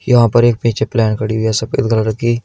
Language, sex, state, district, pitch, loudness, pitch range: Hindi, male, Uttar Pradesh, Shamli, 115 Hz, -14 LUFS, 110-120 Hz